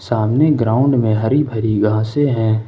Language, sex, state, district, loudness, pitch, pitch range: Hindi, male, Jharkhand, Ranchi, -16 LUFS, 110 Hz, 110-135 Hz